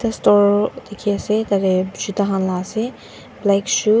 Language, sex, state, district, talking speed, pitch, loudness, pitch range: Nagamese, female, Nagaland, Dimapur, 150 wpm, 205 Hz, -19 LUFS, 195-215 Hz